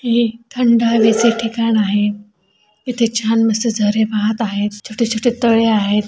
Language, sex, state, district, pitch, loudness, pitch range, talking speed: Marathi, female, Maharashtra, Pune, 225 Hz, -16 LUFS, 210-230 Hz, 150 wpm